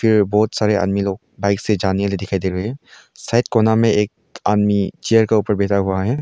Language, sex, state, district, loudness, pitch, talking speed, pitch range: Hindi, male, Arunachal Pradesh, Longding, -18 LUFS, 105 Hz, 210 wpm, 100-110 Hz